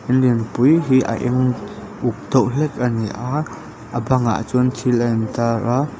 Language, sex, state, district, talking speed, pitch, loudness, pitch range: Mizo, male, Mizoram, Aizawl, 180 wpm, 125 Hz, -19 LUFS, 115-130 Hz